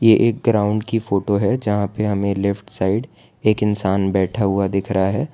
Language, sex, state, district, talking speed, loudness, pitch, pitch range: Hindi, male, Gujarat, Valsad, 200 wpm, -19 LUFS, 105 Hz, 100-110 Hz